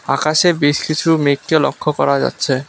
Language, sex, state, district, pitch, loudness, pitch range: Bengali, male, West Bengal, Alipurduar, 145 Hz, -15 LUFS, 130-155 Hz